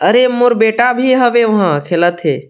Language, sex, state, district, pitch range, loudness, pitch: Chhattisgarhi, male, Chhattisgarh, Sarguja, 185-245 Hz, -12 LUFS, 235 Hz